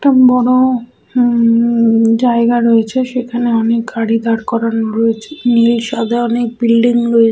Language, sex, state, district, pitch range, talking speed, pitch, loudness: Bengali, female, West Bengal, Malda, 230-240 Hz, 130 wpm, 235 Hz, -13 LUFS